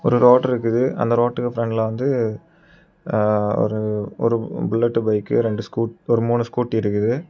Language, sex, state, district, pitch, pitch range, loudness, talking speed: Tamil, male, Tamil Nadu, Kanyakumari, 115 Hz, 110-120 Hz, -20 LUFS, 155 wpm